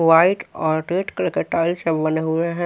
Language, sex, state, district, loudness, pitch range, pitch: Hindi, male, Haryana, Rohtak, -20 LUFS, 160-175 Hz, 165 Hz